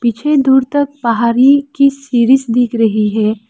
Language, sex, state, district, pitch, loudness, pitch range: Hindi, female, Arunachal Pradesh, Lower Dibang Valley, 245 Hz, -12 LUFS, 230-275 Hz